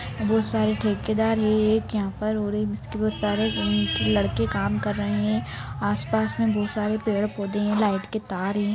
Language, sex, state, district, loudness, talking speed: Hindi, female, Bihar, Jamui, -24 LUFS, 205 wpm